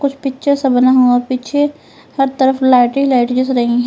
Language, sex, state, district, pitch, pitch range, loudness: Hindi, female, Uttar Pradesh, Lalitpur, 260 Hz, 250-275 Hz, -13 LUFS